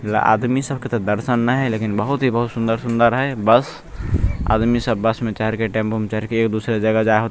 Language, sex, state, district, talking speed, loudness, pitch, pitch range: Maithili, male, Bihar, Begusarai, 240 wpm, -19 LUFS, 115 Hz, 110-120 Hz